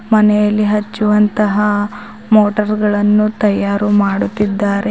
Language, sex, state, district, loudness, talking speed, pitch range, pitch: Kannada, female, Karnataka, Bidar, -14 LUFS, 75 wpm, 205-210 Hz, 210 Hz